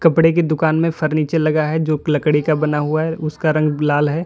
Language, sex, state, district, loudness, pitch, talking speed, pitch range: Hindi, male, Uttar Pradesh, Lalitpur, -17 LUFS, 155 Hz, 240 wpm, 150-160 Hz